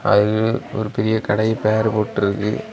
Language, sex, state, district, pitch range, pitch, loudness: Tamil, male, Tamil Nadu, Kanyakumari, 105-110 Hz, 110 Hz, -19 LUFS